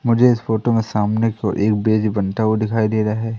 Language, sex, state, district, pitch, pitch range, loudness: Hindi, male, Madhya Pradesh, Katni, 110 Hz, 105-115 Hz, -18 LUFS